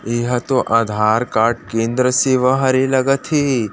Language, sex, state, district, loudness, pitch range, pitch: Chhattisgarhi, male, Chhattisgarh, Rajnandgaon, -16 LUFS, 115-130 Hz, 125 Hz